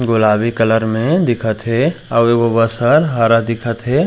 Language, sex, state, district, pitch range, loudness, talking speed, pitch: Chhattisgarhi, male, Chhattisgarh, Raigarh, 115-120 Hz, -14 LUFS, 175 wpm, 115 Hz